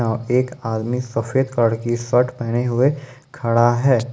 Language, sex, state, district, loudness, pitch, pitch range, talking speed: Hindi, male, Jharkhand, Ranchi, -19 LUFS, 120 Hz, 115-130 Hz, 130 wpm